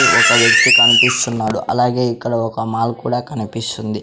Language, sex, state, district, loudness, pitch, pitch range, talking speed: Telugu, male, Andhra Pradesh, Sri Satya Sai, -14 LUFS, 115 Hz, 110-125 Hz, 135 wpm